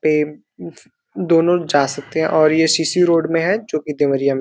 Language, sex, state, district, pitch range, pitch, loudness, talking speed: Hindi, male, Uttar Pradesh, Deoria, 150-165 Hz, 155 Hz, -17 LUFS, 230 wpm